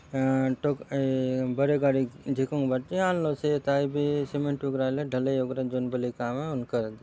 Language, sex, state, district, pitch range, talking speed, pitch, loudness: Halbi, male, Chhattisgarh, Bastar, 130-145 Hz, 190 wpm, 135 Hz, -28 LUFS